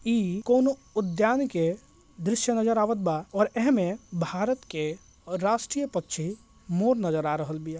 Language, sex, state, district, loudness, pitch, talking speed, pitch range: Bhojpuri, male, Bihar, Gopalganj, -27 LUFS, 210 Hz, 170 wpm, 170-230 Hz